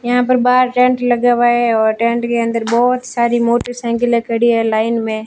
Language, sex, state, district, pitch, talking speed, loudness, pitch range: Hindi, female, Rajasthan, Barmer, 235 Hz, 205 wpm, -14 LUFS, 230-245 Hz